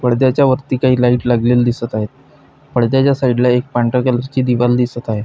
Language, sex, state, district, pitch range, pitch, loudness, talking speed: Marathi, male, Maharashtra, Pune, 120-130 Hz, 125 Hz, -15 LUFS, 170 wpm